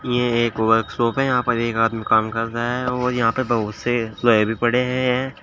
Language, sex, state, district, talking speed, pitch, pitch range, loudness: Hindi, male, Uttar Pradesh, Shamli, 245 wpm, 120 Hz, 115-125 Hz, -20 LUFS